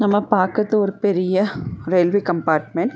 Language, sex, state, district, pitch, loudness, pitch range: Tamil, female, Tamil Nadu, Nilgiris, 195 Hz, -19 LUFS, 180-205 Hz